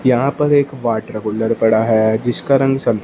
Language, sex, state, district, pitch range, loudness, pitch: Hindi, male, Punjab, Fazilka, 110-135 Hz, -16 LUFS, 115 Hz